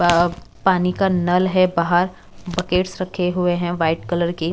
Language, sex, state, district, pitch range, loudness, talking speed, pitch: Hindi, female, Bihar, West Champaran, 175-185 Hz, -19 LUFS, 185 wpm, 180 Hz